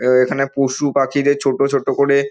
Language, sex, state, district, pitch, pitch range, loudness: Bengali, male, West Bengal, North 24 Parganas, 140 Hz, 135-140 Hz, -17 LUFS